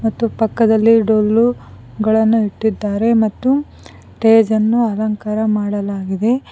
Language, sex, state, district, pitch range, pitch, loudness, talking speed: Kannada, female, Karnataka, Koppal, 210-225 Hz, 220 Hz, -15 LUFS, 90 wpm